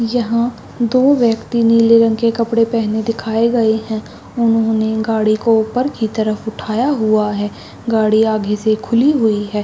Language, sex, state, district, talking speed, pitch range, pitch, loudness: Hindi, female, Chhattisgarh, Bastar, 170 wpm, 220-230 Hz, 225 Hz, -15 LUFS